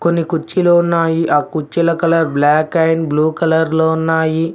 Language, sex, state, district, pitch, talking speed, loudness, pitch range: Telugu, male, Telangana, Mahabubabad, 160 Hz, 145 wpm, -14 LUFS, 160-170 Hz